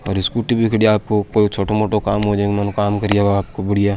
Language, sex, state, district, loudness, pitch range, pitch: Rajasthani, male, Rajasthan, Churu, -17 LUFS, 100-105 Hz, 105 Hz